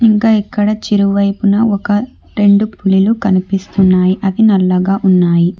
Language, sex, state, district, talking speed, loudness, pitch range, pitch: Telugu, female, Telangana, Hyderabad, 105 wpm, -12 LUFS, 190-210 Hz, 200 Hz